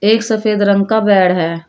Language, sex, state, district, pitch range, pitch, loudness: Hindi, female, Uttar Pradesh, Shamli, 185-220 Hz, 205 Hz, -13 LUFS